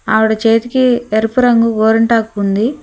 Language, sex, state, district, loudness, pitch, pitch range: Telugu, female, Telangana, Hyderabad, -13 LUFS, 225 Hz, 220-240 Hz